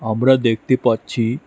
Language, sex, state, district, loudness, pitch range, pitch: Bengali, male, Tripura, West Tripura, -17 LUFS, 115-130 Hz, 120 Hz